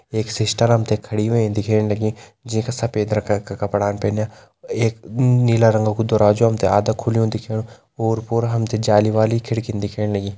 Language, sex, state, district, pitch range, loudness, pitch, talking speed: Hindi, male, Uttarakhand, Tehri Garhwal, 105-115 Hz, -19 LUFS, 110 Hz, 195 wpm